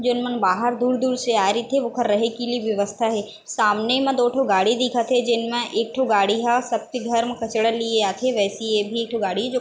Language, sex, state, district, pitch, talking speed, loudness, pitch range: Chhattisgarhi, female, Chhattisgarh, Bilaspur, 230 Hz, 250 wpm, -21 LUFS, 215-245 Hz